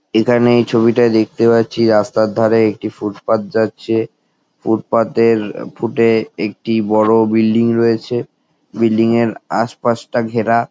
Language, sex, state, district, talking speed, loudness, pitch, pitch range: Bengali, male, West Bengal, Jalpaiguri, 130 wpm, -15 LUFS, 115 Hz, 110-115 Hz